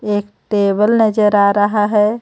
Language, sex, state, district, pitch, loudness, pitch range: Hindi, female, Jharkhand, Ranchi, 210 Hz, -14 LUFS, 205-215 Hz